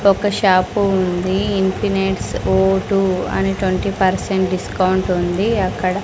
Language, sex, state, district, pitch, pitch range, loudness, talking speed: Telugu, female, Andhra Pradesh, Sri Satya Sai, 190 Hz, 185-195 Hz, -17 LUFS, 110 wpm